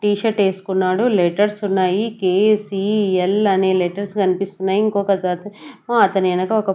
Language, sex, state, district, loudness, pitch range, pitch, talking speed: Telugu, female, Andhra Pradesh, Sri Satya Sai, -18 LUFS, 190-210 Hz, 195 Hz, 140 wpm